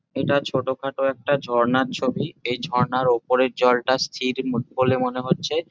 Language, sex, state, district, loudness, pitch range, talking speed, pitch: Bengali, male, West Bengal, Jhargram, -22 LUFS, 125-135 Hz, 145 wpm, 130 Hz